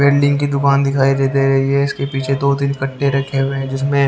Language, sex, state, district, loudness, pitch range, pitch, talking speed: Hindi, male, Haryana, Jhajjar, -16 LUFS, 135-140 Hz, 140 Hz, 250 wpm